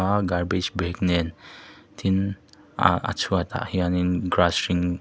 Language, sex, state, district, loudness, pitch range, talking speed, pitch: Mizo, male, Mizoram, Aizawl, -24 LUFS, 90-95 Hz, 145 wpm, 90 Hz